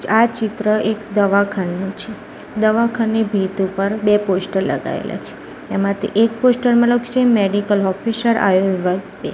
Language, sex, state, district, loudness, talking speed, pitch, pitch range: Gujarati, female, Gujarat, Gandhinagar, -17 LUFS, 150 wpm, 210 Hz, 195-225 Hz